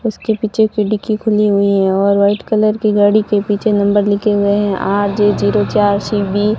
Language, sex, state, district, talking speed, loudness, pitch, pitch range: Hindi, female, Rajasthan, Barmer, 200 wpm, -14 LUFS, 205 Hz, 200-215 Hz